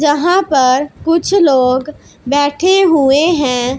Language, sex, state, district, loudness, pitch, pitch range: Hindi, female, Punjab, Pathankot, -12 LUFS, 290 Hz, 270-335 Hz